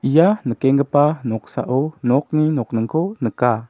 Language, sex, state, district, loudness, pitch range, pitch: Garo, male, Meghalaya, South Garo Hills, -19 LUFS, 120-155 Hz, 135 Hz